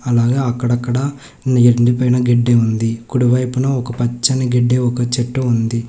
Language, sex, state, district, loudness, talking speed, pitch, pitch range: Telugu, male, Telangana, Hyderabad, -16 LUFS, 130 wpm, 120 Hz, 120-125 Hz